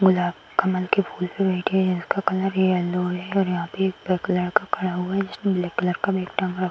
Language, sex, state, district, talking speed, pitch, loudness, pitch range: Hindi, female, Uttar Pradesh, Hamirpur, 230 wpm, 185 Hz, -23 LUFS, 180-195 Hz